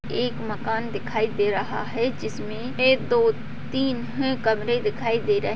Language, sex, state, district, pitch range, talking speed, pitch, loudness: Hindi, female, Bihar, Jahanabad, 215-255 Hz, 170 wpm, 230 Hz, -24 LUFS